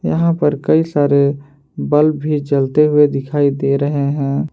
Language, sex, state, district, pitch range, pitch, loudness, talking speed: Hindi, male, Jharkhand, Palamu, 140-150 Hz, 145 Hz, -15 LUFS, 160 wpm